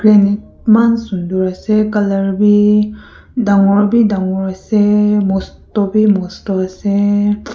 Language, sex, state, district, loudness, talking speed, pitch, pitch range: Nagamese, female, Nagaland, Kohima, -14 LUFS, 105 wpm, 205 Hz, 195-210 Hz